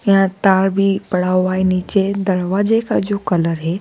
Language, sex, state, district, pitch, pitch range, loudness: Hindi, female, Madhya Pradesh, Dhar, 190 Hz, 185-195 Hz, -17 LUFS